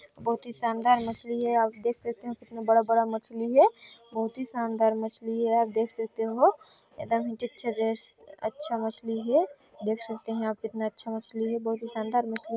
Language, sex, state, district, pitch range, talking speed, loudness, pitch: Hindi, female, Chhattisgarh, Balrampur, 225-235 Hz, 185 wpm, -28 LUFS, 230 Hz